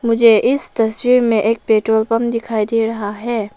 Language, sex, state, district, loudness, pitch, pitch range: Hindi, female, Arunachal Pradesh, Lower Dibang Valley, -16 LUFS, 225 Hz, 220-235 Hz